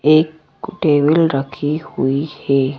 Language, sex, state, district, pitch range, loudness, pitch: Hindi, female, Madhya Pradesh, Bhopal, 135-155 Hz, -17 LUFS, 150 Hz